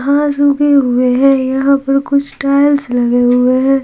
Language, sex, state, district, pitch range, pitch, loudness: Hindi, female, Bihar, Patna, 255-280 Hz, 275 Hz, -12 LUFS